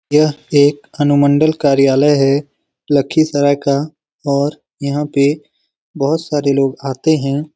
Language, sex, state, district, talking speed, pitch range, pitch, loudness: Hindi, male, Bihar, Lakhisarai, 120 wpm, 140-150 Hz, 145 Hz, -15 LUFS